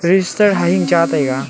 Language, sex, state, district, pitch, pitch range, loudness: Wancho, male, Arunachal Pradesh, Longding, 165 Hz, 130-185 Hz, -15 LUFS